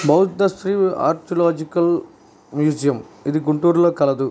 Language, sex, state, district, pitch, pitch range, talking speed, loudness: Telugu, male, Andhra Pradesh, Guntur, 165 Hz, 145-175 Hz, 100 wpm, -19 LUFS